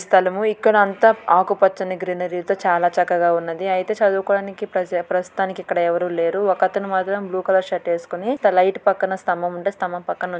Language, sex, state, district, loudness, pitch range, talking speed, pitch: Telugu, female, Andhra Pradesh, Guntur, -20 LUFS, 180-200 Hz, 160 wpm, 185 Hz